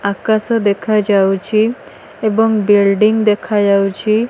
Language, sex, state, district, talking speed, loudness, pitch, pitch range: Odia, female, Odisha, Malkangiri, 70 wpm, -14 LUFS, 215 Hz, 200-220 Hz